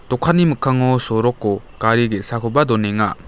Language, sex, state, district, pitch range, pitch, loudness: Garo, male, Meghalaya, West Garo Hills, 110-130 Hz, 115 Hz, -17 LUFS